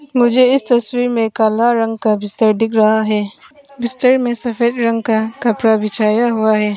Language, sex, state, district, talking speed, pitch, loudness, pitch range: Hindi, female, Arunachal Pradesh, Papum Pare, 175 wpm, 230 Hz, -15 LUFS, 220-240 Hz